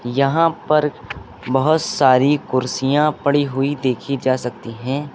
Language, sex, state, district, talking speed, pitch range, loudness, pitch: Hindi, male, Uttar Pradesh, Lucknow, 130 wpm, 130-145 Hz, -18 LUFS, 135 Hz